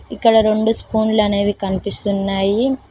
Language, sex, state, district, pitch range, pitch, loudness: Telugu, female, Telangana, Mahabubabad, 200-220 Hz, 210 Hz, -17 LUFS